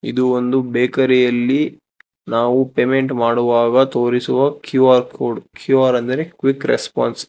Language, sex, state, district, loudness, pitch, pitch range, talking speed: Kannada, male, Karnataka, Bangalore, -16 LUFS, 130 Hz, 120-135 Hz, 115 wpm